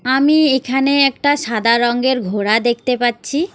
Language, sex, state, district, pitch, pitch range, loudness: Bengali, female, West Bengal, Alipurduar, 255 Hz, 235-280 Hz, -15 LUFS